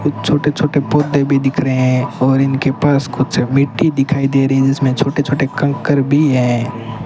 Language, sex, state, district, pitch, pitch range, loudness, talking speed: Hindi, male, Rajasthan, Bikaner, 135 Hz, 130-145 Hz, -15 LUFS, 195 wpm